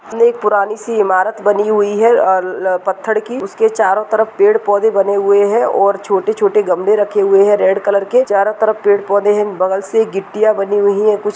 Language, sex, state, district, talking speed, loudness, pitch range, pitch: Hindi, female, Uttar Pradesh, Muzaffarnagar, 195 wpm, -13 LUFS, 200-215 Hz, 205 Hz